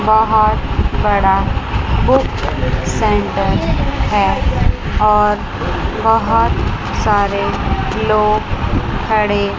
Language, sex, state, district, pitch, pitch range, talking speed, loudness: Hindi, female, Chandigarh, Chandigarh, 210 Hz, 200-215 Hz, 65 wpm, -15 LUFS